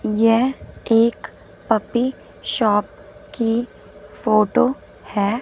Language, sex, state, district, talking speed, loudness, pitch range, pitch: Hindi, female, Punjab, Fazilka, 80 wpm, -19 LUFS, 215-245 Hz, 225 Hz